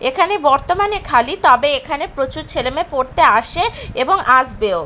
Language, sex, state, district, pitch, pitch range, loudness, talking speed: Bengali, female, Bihar, Katihar, 290 Hz, 265-360 Hz, -16 LUFS, 135 wpm